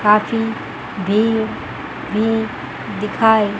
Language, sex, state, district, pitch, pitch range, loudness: Hindi, female, Chandigarh, Chandigarh, 220 Hz, 210-225 Hz, -19 LUFS